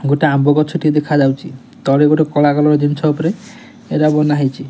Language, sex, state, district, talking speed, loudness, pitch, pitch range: Odia, male, Odisha, Nuapada, 190 wpm, -14 LUFS, 150 Hz, 145-155 Hz